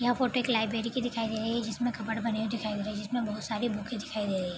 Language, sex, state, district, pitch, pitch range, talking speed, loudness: Hindi, female, Bihar, Araria, 225 Hz, 215-240 Hz, 330 wpm, -31 LUFS